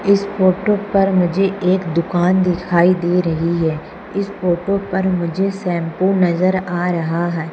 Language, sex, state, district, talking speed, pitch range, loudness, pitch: Hindi, female, Madhya Pradesh, Umaria, 150 wpm, 170-195 Hz, -17 LUFS, 180 Hz